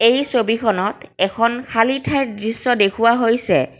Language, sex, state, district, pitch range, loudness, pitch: Assamese, female, Assam, Kamrup Metropolitan, 220-245 Hz, -18 LUFS, 230 Hz